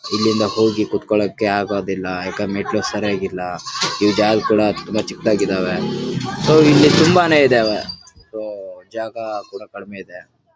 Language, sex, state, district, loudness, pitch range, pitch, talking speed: Kannada, male, Karnataka, Bijapur, -17 LUFS, 100-115 Hz, 105 Hz, 120 wpm